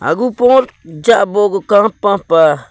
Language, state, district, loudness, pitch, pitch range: Nyishi, Arunachal Pradesh, Papum Pare, -12 LUFS, 205 Hz, 165-230 Hz